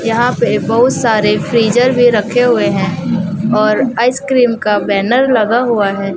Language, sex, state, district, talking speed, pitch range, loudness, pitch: Hindi, female, Chhattisgarh, Raipur, 155 wpm, 205-245 Hz, -12 LUFS, 225 Hz